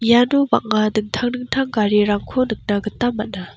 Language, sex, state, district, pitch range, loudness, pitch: Garo, female, Meghalaya, West Garo Hills, 210-245 Hz, -19 LUFS, 215 Hz